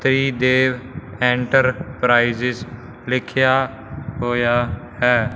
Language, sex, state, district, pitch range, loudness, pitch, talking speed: Punjabi, male, Punjab, Fazilka, 120-130 Hz, -18 LUFS, 125 Hz, 55 wpm